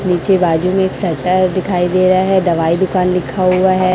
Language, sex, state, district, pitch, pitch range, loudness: Hindi, female, Chhattisgarh, Raipur, 185 Hz, 180-185 Hz, -14 LUFS